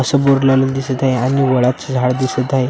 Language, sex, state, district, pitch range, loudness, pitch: Marathi, male, Maharashtra, Washim, 130-135 Hz, -15 LUFS, 130 Hz